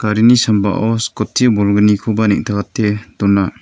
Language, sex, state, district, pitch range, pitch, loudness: Garo, male, Meghalaya, North Garo Hills, 100-115 Hz, 105 Hz, -14 LUFS